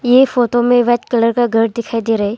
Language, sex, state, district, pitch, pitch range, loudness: Hindi, female, Arunachal Pradesh, Longding, 240 Hz, 230-245 Hz, -14 LUFS